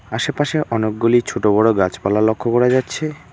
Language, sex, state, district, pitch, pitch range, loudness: Bengali, male, West Bengal, Alipurduar, 115 Hz, 110-130 Hz, -17 LUFS